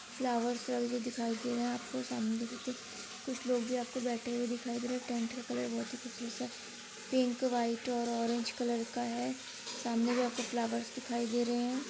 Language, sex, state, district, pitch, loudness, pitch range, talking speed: Hindi, female, Bihar, Araria, 240 Hz, -36 LUFS, 235-250 Hz, 205 wpm